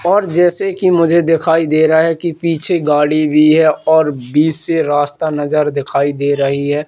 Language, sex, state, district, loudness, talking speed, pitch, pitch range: Hindi, male, Madhya Pradesh, Katni, -13 LUFS, 190 wpm, 155 Hz, 150-165 Hz